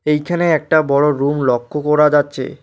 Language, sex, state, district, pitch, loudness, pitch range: Bengali, male, West Bengal, Alipurduar, 150 Hz, -15 LUFS, 140-150 Hz